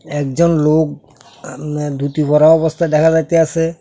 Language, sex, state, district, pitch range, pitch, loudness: Bengali, male, Tripura, South Tripura, 145-165 Hz, 155 Hz, -14 LUFS